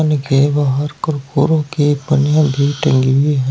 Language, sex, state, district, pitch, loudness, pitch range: Hindi, male, Uttar Pradesh, Saharanpur, 145 Hz, -15 LUFS, 140-150 Hz